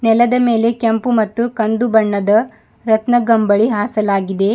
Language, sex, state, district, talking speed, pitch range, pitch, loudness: Kannada, female, Karnataka, Bidar, 105 wpm, 210-235 Hz, 225 Hz, -15 LUFS